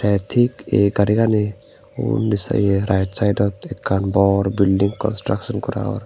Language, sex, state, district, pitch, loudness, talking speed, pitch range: Chakma, male, Tripura, Unakoti, 100 Hz, -19 LUFS, 150 wpm, 100-110 Hz